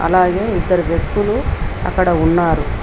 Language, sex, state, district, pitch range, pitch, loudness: Telugu, female, Telangana, Mahabubabad, 165-190 Hz, 180 Hz, -16 LUFS